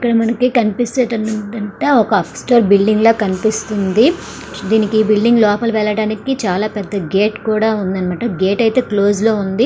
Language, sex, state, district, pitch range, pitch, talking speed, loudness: Telugu, female, Andhra Pradesh, Srikakulam, 205-230 Hz, 215 Hz, 150 wpm, -15 LUFS